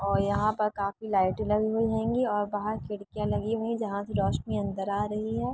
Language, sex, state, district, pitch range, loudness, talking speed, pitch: Hindi, female, Uttar Pradesh, Varanasi, 200-220 Hz, -29 LUFS, 205 wpm, 210 Hz